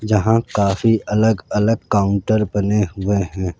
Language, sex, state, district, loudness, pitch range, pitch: Hindi, male, Rajasthan, Jaipur, -18 LUFS, 100-110 Hz, 105 Hz